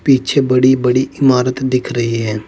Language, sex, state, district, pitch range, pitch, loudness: Hindi, male, Uttar Pradesh, Saharanpur, 125-130 Hz, 125 Hz, -14 LUFS